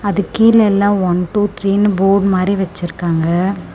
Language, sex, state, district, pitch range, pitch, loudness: Tamil, female, Tamil Nadu, Namakkal, 180-205 Hz, 195 Hz, -14 LUFS